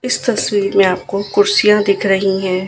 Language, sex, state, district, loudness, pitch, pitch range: Hindi, female, Gujarat, Gandhinagar, -14 LUFS, 200 Hz, 195-210 Hz